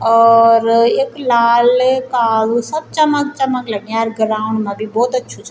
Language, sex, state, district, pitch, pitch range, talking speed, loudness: Garhwali, female, Uttarakhand, Tehri Garhwal, 235 Hz, 225-255 Hz, 140 wpm, -14 LUFS